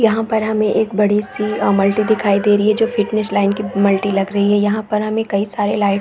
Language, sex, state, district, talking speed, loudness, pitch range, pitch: Hindi, female, Chhattisgarh, Raigarh, 260 wpm, -16 LUFS, 200-215 Hz, 210 Hz